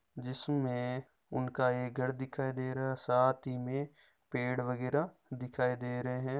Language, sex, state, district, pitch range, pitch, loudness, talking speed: Marwari, male, Rajasthan, Nagaur, 125-130 Hz, 130 Hz, -35 LUFS, 170 wpm